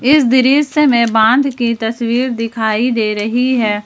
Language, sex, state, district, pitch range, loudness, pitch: Hindi, female, Jharkhand, Ranchi, 225-260 Hz, -13 LUFS, 240 Hz